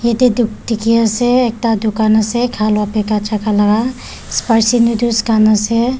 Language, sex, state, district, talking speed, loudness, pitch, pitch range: Nagamese, female, Nagaland, Kohima, 150 wpm, -14 LUFS, 225 Hz, 215-235 Hz